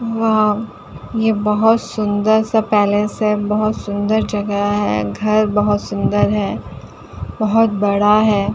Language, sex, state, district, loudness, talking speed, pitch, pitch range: Hindi, female, Uttar Pradesh, Jalaun, -16 LUFS, 125 wpm, 210 Hz, 205-220 Hz